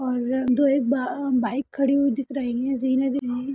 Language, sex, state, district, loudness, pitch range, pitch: Hindi, female, Chhattisgarh, Jashpur, -23 LUFS, 255-275 Hz, 265 Hz